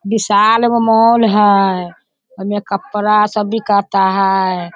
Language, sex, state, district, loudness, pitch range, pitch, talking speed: Hindi, female, Bihar, Sitamarhi, -13 LUFS, 195-225 Hz, 205 Hz, 115 wpm